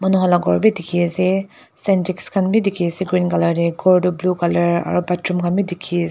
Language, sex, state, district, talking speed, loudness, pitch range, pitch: Nagamese, female, Nagaland, Dimapur, 245 wpm, -18 LUFS, 175-185 Hz, 180 Hz